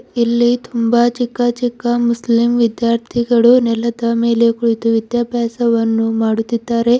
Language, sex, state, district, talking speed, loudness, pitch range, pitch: Kannada, female, Karnataka, Bidar, 95 wpm, -15 LUFS, 230-240 Hz, 235 Hz